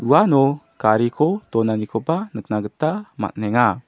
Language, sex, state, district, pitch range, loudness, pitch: Garo, male, Meghalaya, South Garo Hills, 110-155 Hz, -20 LUFS, 120 Hz